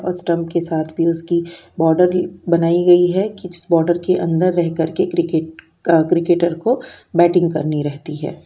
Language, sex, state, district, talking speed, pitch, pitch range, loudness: Hindi, female, Uttar Pradesh, Jyotiba Phule Nagar, 185 wpm, 170 Hz, 165-180 Hz, -17 LUFS